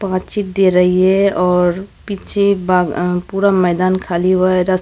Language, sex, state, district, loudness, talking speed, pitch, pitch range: Hindi, female, Maharashtra, Gondia, -15 LUFS, 135 wpm, 185 Hz, 180-195 Hz